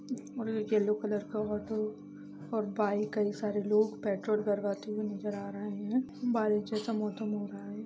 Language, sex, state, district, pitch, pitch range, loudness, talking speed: Hindi, female, Chhattisgarh, Raigarh, 210 Hz, 205-215 Hz, -33 LUFS, 185 wpm